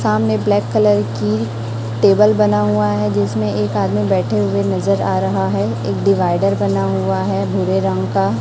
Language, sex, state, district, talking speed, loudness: Hindi, female, Chhattisgarh, Raipur, 180 wpm, -16 LUFS